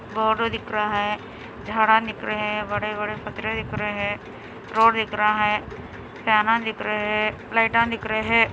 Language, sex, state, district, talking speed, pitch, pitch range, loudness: Hindi, female, Andhra Pradesh, Anantapur, 160 wpm, 215 Hz, 210-225 Hz, -22 LUFS